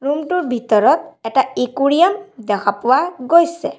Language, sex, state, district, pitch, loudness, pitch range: Assamese, female, Assam, Sonitpur, 280 Hz, -16 LUFS, 235-340 Hz